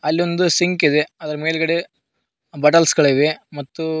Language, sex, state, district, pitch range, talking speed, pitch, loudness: Kannada, male, Karnataka, Koppal, 150-165 Hz, 135 wpm, 160 Hz, -17 LUFS